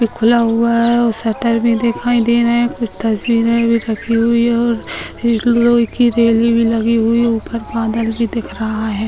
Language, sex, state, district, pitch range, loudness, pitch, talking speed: Hindi, female, Bihar, Muzaffarpur, 225-235 Hz, -15 LUFS, 230 Hz, 190 wpm